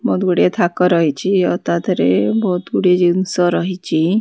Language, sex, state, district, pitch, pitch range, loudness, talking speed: Odia, female, Odisha, Khordha, 180 Hz, 165-185 Hz, -16 LUFS, 170 wpm